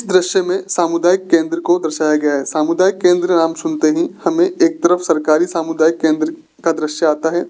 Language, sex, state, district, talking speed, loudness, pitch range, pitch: Hindi, male, Rajasthan, Jaipur, 185 wpm, -15 LUFS, 160-185 Hz, 170 Hz